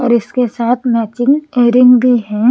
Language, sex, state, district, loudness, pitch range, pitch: Hindi, female, Punjab, Pathankot, -12 LUFS, 235-250 Hz, 245 Hz